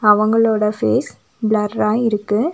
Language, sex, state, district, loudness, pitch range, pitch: Tamil, female, Tamil Nadu, Nilgiris, -17 LUFS, 210-225 Hz, 215 Hz